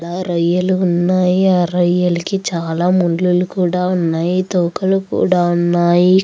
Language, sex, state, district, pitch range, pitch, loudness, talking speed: Telugu, female, Andhra Pradesh, Anantapur, 175-185 Hz, 180 Hz, -15 LUFS, 115 wpm